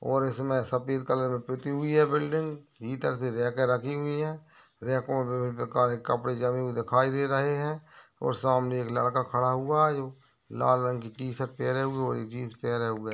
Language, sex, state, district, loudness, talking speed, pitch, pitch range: Hindi, male, Maharashtra, Aurangabad, -29 LUFS, 185 wpm, 130 Hz, 125-140 Hz